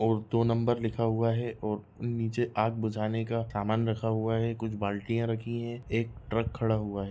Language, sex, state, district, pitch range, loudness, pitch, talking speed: Hindi, male, Bihar, Jahanabad, 110-115 Hz, -31 LUFS, 115 Hz, 205 wpm